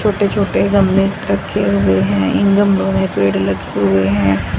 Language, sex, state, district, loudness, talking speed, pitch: Hindi, female, Haryana, Rohtak, -15 LUFS, 170 wpm, 100 Hz